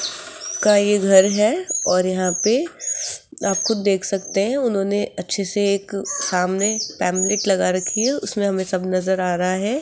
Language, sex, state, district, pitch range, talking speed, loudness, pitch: Hindi, female, Rajasthan, Jaipur, 190-210 Hz, 155 wpm, -20 LUFS, 200 Hz